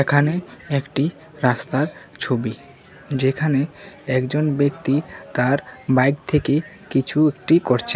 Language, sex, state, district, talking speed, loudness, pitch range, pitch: Bengali, male, Tripura, West Tripura, 100 wpm, -21 LUFS, 130-150 Hz, 140 Hz